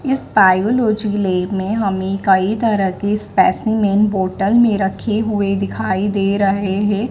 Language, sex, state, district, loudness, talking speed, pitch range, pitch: Hindi, female, Madhya Pradesh, Dhar, -16 LUFS, 145 wpm, 195-215 Hz, 200 Hz